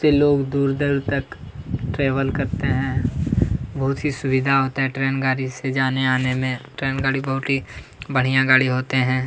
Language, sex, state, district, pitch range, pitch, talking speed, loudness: Hindi, male, Chhattisgarh, Kabirdham, 130-135 Hz, 135 Hz, 175 wpm, -21 LUFS